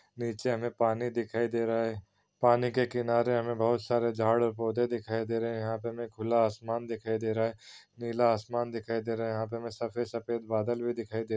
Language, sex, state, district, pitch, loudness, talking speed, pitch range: Hindi, male, Chhattisgarh, Sukma, 115 Hz, -31 LUFS, 235 wpm, 115-120 Hz